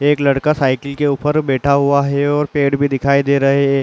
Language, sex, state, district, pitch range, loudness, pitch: Hindi, male, Uttar Pradesh, Muzaffarnagar, 140-145 Hz, -15 LUFS, 140 Hz